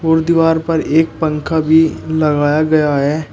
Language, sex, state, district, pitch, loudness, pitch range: Hindi, male, Uttar Pradesh, Shamli, 160 Hz, -14 LUFS, 150-160 Hz